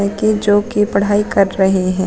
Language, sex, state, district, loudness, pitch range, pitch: Hindi, female, Uttar Pradesh, Shamli, -15 LUFS, 190-210 Hz, 205 Hz